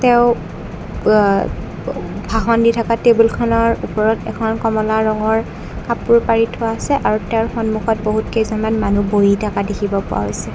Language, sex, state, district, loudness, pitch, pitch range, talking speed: Assamese, female, Assam, Kamrup Metropolitan, -16 LUFS, 220 Hz, 210-230 Hz, 155 wpm